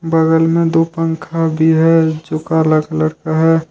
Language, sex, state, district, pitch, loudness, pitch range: Hindi, male, Jharkhand, Ranchi, 160 Hz, -14 LUFS, 160-165 Hz